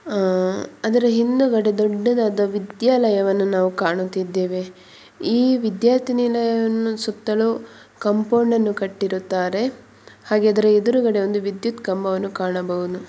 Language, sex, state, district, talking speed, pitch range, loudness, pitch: Kannada, male, Karnataka, Mysore, 95 wpm, 190-230 Hz, -20 LUFS, 210 Hz